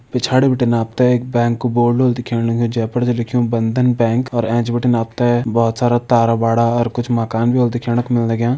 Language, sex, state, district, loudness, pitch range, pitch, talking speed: Hindi, male, Uttarakhand, Uttarkashi, -16 LUFS, 115-125 Hz, 120 Hz, 245 wpm